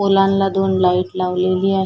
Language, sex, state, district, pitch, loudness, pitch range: Marathi, female, Maharashtra, Solapur, 190 Hz, -17 LUFS, 185-195 Hz